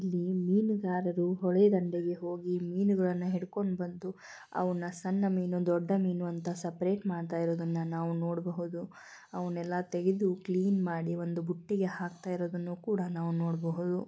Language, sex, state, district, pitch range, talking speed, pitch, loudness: Kannada, female, Karnataka, Belgaum, 175-185 Hz, 130 wpm, 180 Hz, -32 LUFS